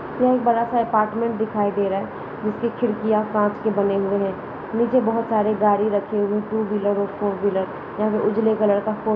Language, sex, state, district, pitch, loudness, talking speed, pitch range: Hindi, female, Uttar Pradesh, Jalaun, 215 Hz, -21 LUFS, 225 wpm, 205-220 Hz